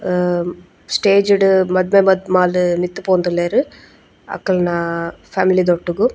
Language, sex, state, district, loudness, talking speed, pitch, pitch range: Tulu, female, Karnataka, Dakshina Kannada, -16 LUFS, 95 wpm, 180 Hz, 175-190 Hz